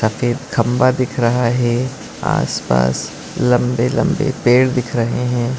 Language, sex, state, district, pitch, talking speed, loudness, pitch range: Hindi, male, Maharashtra, Dhule, 125 Hz, 140 wpm, -17 LUFS, 120-130 Hz